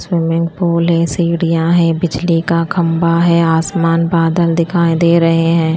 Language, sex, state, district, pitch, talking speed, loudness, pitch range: Hindi, female, Punjab, Kapurthala, 170 Hz, 155 wpm, -13 LUFS, 165-170 Hz